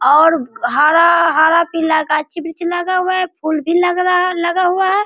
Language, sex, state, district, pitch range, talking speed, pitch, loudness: Hindi, female, Bihar, Sitamarhi, 315-365 Hz, 180 wpm, 340 Hz, -14 LUFS